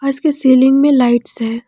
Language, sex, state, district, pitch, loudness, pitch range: Hindi, female, Jharkhand, Palamu, 260 Hz, -12 LUFS, 240-275 Hz